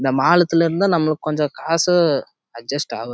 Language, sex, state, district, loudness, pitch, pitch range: Tamil, male, Karnataka, Chamarajanagar, -18 LUFS, 160 Hz, 145-170 Hz